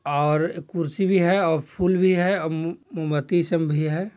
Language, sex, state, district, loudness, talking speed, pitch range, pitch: Hindi, male, Bihar, Jahanabad, -22 LUFS, 215 wpm, 155-185 Hz, 170 Hz